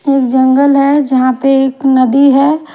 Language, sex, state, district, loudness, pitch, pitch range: Hindi, female, Haryana, Jhajjar, -10 LUFS, 275 Hz, 260-280 Hz